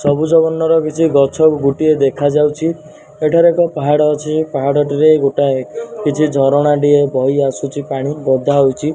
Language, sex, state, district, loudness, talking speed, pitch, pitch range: Odia, male, Odisha, Nuapada, -14 LUFS, 135 wpm, 145 Hz, 140-155 Hz